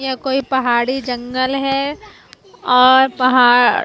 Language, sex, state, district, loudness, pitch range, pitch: Hindi, female, Maharashtra, Mumbai Suburban, -15 LUFS, 250-270 Hz, 260 Hz